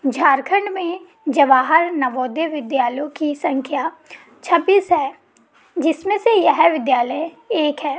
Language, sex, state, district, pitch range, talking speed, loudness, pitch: Hindi, female, Jharkhand, Sahebganj, 275-350 Hz, 110 wpm, -18 LUFS, 315 Hz